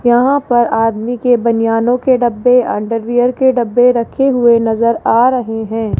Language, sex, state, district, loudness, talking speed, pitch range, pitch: Hindi, female, Rajasthan, Jaipur, -13 LUFS, 160 wpm, 230-250 Hz, 240 Hz